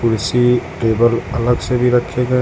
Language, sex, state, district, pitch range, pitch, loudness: Hindi, female, Uttar Pradesh, Lucknow, 115-125 Hz, 120 Hz, -16 LUFS